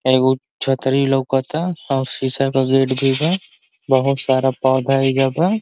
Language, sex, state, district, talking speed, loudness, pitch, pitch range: Bhojpuri, male, Uttar Pradesh, Ghazipur, 150 wpm, -18 LUFS, 135 Hz, 130-135 Hz